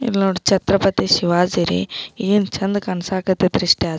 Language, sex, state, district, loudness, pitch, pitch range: Kannada, female, Karnataka, Belgaum, -18 LUFS, 190 Hz, 175-195 Hz